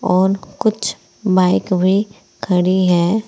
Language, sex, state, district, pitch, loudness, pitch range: Hindi, female, Uttar Pradesh, Saharanpur, 190 Hz, -16 LUFS, 185-205 Hz